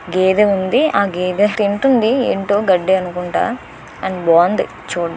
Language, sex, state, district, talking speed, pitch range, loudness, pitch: Telugu, female, Andhra Pradesh, Visakhapatnam, 130 wpm, 180-205 Hz, -16 LUFS, 190 Hz